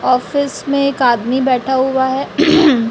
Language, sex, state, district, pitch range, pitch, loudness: Hindi, female, Chhattisgarh, Raipur, 255-280 Hz, 265 Hz, -14 LUFS